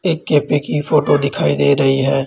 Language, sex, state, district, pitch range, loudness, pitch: Hindi, male, Rajasthan, Jaipur, 135-150 Hz, -15 LUFS, 140 Hz